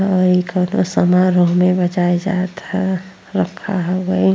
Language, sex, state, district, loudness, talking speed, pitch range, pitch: Bhojpuri, female, Uttar Pradesh, Ghazipur, -17 LUFS, 150 wpm, 180-190 Hz, 185 Hz